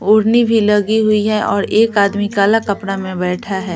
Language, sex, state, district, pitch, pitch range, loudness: Hindi, female, Bihar, West Champaran, 210 Hz, 195-220 Hz, -14 LUFS